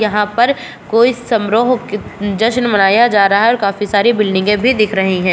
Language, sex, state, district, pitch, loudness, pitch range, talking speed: Hindi, female, Chhattisgarh, Bastar, 215 Hz, -13 LUFS, 200-235 Hz, 190 wpm